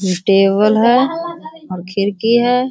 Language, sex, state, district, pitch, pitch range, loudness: Hindi, female, Bihar, Sitamarhi, 225 Hz, 195-260 Hz, -14 LUFS